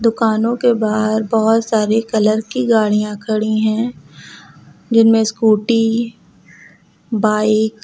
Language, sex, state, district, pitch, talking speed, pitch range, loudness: Hindi, female, Uttar Pradesh, Lucknow, 220 Hz, 105 wpm, 215-225 Hz, -16 LUFS